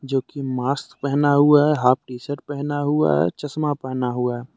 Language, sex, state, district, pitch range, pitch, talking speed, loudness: Hindi, male, Jharkhand, Deoghar, 125-145 Hz, 140 Hz, 210 wpm, -21 LUFS